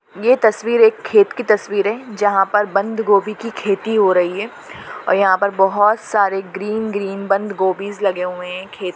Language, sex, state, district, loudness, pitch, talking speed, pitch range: Hindi, female, Maharashtra, Nagpur, -17 LUFS, 205 Hz, 195 wpm, 195-215 Hz